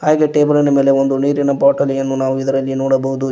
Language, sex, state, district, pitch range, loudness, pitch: Kannada, male, Karnataka, Koppal, 135-145 Hz, -15 LUFS, 135 Hz